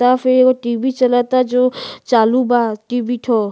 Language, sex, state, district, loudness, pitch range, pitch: Bhojpuri, female, Uttar Pradesh, Gorakhpur, -15 LUFS, 235-255 Hz, 245 Hz